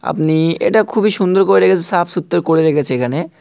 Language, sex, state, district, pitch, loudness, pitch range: Bengali, male, West Bengal, North 24 Parganas, 165 Hz, -14 LUFS, 155-190 Hz